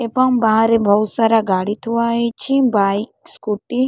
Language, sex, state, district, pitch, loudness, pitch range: Odia, female, Odisha, Khordha, 225 Hz, -17 LUFS, 210-235 Hz